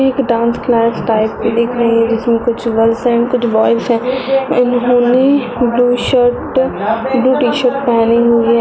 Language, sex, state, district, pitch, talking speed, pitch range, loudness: Hindi, female, Uttar Pradesh, Budaun, 240 Hz, 155 wpm, 230-250 Hz, -13 LUFS